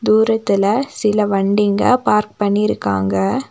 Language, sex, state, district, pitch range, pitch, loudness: Tamil, female, Tamil Nadu, Nilgiris, 195-220 Hz, 210 Hz, -16 LUFS